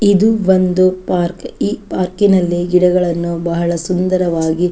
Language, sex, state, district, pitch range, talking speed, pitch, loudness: Kannada, female, Karnataka, Chamarajanagar, 170-185 Hz, 115 wpm, 180 Hz, -15 LUFS